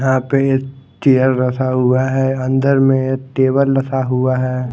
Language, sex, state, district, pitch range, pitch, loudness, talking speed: Hindi, male, Haryana, Jhajjar, 130-135 Hz, 130 Hz, -15 LUFS, 150 wpm